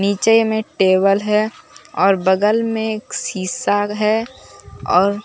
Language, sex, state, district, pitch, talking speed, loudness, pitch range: Hindi, male, Bihar, Katihar, 210 Hz, 125 wpm, -17 LUFS, 195-220 Hz